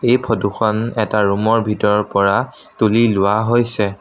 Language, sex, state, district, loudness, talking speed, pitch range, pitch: Assamese, male, Assam, Sonitpur, -16 LUFS, 165 wpm, 105-115 Hz, 110 Hz